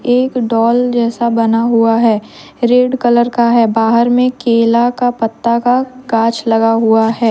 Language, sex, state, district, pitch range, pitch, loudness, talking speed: Hindi, female, Jharkhand, Deoghar, 225-245 Hz, 235 Hz, -12 LUFS, 165 wpm